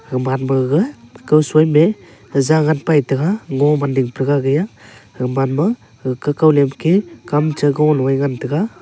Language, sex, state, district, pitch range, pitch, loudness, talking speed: Wancho, male, Arunachal Pradesh, Longding, 130-155 Hz, 145 Hz, -16 LUFS, 130 wpm